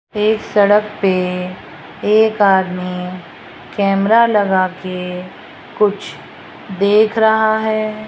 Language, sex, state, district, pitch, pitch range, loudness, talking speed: Hindi, female, Rajasthan, Jaipur, 200 Hz, 185-215 Hz, -15 LUFS, 90 wpm